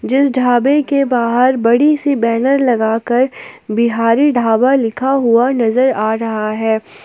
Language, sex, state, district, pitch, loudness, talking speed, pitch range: Hindi, female, Jharkhand, Palamu, 245 Hz, -14 LUFS, 135 wpm, 230-265 Hz